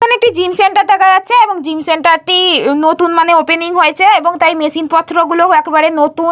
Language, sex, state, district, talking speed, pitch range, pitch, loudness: Bengali, female, Jharkhand, Jamtara, 190 wpm, 325-380 Hz, 340 Hz, -10 LUFS